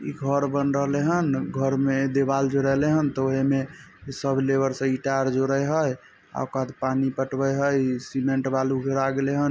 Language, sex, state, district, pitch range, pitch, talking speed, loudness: Maithili, male, Bihar, Samastipur, 135-140 Hz, 135 Hz, 190 wpm, -24 LUFS